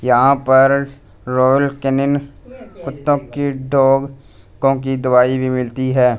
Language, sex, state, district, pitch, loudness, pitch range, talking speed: Hindi, male, Punjab, Fazilka, 135 Hz, -16 LUFS, 130-140 Hz, 125 wpm